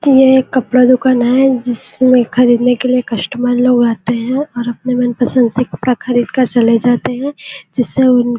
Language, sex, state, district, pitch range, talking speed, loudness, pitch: Hindi, female, Chhattisgarh, Bilaspur, 240-255 Hz, 195 wpm, -13 LUFS, 250 Hz